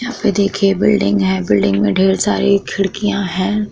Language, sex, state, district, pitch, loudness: Hindi, female, Bihar, Vaishali, 195 Hz, -15 LUFS